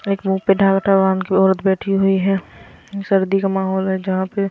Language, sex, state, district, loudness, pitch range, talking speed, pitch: Hindi, female, Himachal Pradesh, Shimla, -17 LUFS, 190-195 Hz, 185 wpm, 195 Hz